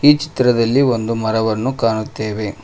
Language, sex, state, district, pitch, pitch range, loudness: Kannada, male, Karnataka, Koppal, 115 Hz, 110-135 Hz, -17 LUFS